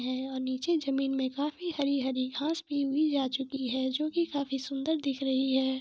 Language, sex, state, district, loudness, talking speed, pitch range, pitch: Hindi, female, Jharkhand, Sahebganj, -31 LUFS, 215 wpm, 260-290 Hz, 275 Hz